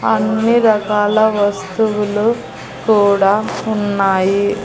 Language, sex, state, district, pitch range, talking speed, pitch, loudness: Telugu, female, Andhra Pradesh, Annamaya, 195-220 Hz, 65 wpm, 205 Hz, -15 LUFS